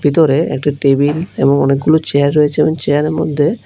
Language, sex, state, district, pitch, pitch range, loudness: Bengali, male, Tripura, West Tripura, 145 Hz, 140-155 Hz, -13 LUFS